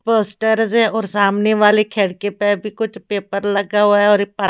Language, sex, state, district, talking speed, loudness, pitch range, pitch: Hindi, female, Bihar, Kaimur, 200 wpm, -16 LUFS, 200-220 Hz, 210 Hz